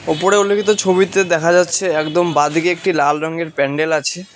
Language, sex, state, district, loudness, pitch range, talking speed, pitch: Bengali, male, West Bengal, Cooch Behar, -15 LUFS, 155-190 Hz, 165 wpm, 170 Hz